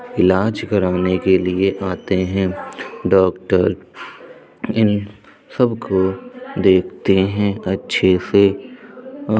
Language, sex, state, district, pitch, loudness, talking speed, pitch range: Hindi, male, Uttar Pradesh, Budaun, 95 Hz, -17 LUFS, 100 wpm, 95-110 Hz